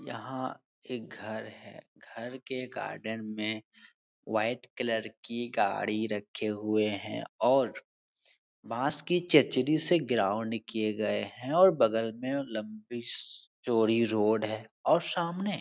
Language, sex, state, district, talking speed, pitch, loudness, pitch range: Hindi, male, Bihar, Supaul, 135 wpm, 115 Hz, -30 LUFS, 110-130 Hz